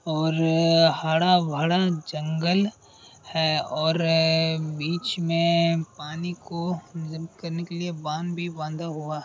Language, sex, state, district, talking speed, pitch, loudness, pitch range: Hindi, male, Bihar, Purnia, 115 wpm, 165 Hz, -24 LUFS, 160-170 Hz